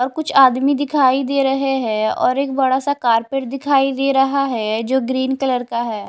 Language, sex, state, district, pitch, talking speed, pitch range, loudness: Hindi, female, Himachal Pradesh, Shimla, 265 Hz, 205 wpm, 250-275 Hz, -17 LUFS